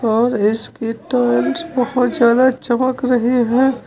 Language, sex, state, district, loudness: Hindi, male, Uttar Pradesh, Lucknow, -16 LUFS